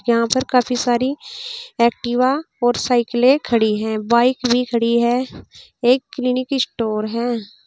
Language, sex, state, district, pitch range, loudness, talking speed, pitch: Hindi, female, Uttar Pradesh, Saharanpur, 235-255 Hz, -18 LUFS, 135 wpm, 245 Hz